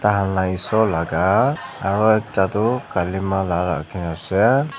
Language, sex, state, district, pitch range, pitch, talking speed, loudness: Nagamese, male, Nagaland, Dimapur, 90-110 Hz, 95 Hz, 140 wpm, -20 LUFS